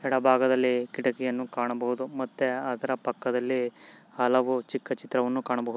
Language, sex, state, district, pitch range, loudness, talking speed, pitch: Kannada, male, Karnataka, Mysore, 125-130 Hz, -28 LUFS, 105 wpm, 125 Hz